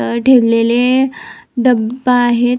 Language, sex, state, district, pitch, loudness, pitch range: Marathi, female, Maharashtra, Nagpur, 245 Hz, -13 LUFS, 235-255 Hz